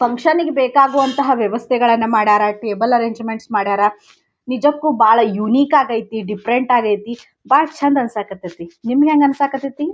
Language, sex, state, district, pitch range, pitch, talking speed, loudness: Kannada, female, Karnataka, Dharwad, 215-275 Hz, 240 Hz, 120 wpm, -16 LUFS